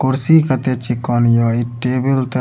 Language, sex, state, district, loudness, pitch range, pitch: Maithili, male, Bihar, Supaul, -16 LUFS, 120-130 Hz, 125 Hz